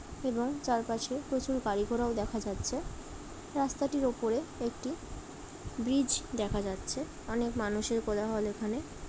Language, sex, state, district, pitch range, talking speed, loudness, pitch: Bengali, female, West Bengal, Dakshin Dinajpur, 215-260 Hz, 110 wpm, -34 LUFS, 235 Hz